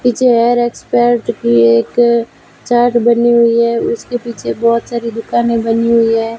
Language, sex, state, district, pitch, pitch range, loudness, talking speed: Hindi, female, Rajasthan, Bikaner, 235 Hz, 230-240 Hz, -13 LUFS, 160 wpm